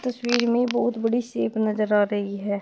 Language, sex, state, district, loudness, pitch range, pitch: Hindi, female, Uttar Pradesh, Shamli, -23 LUFS, 210-240 Hz, 230 Hz